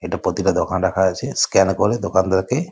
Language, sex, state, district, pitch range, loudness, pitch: Bengali, male, West Bengal, Paschim Medinipur, 95-105 Hz, -19 LUFS, 95 Hz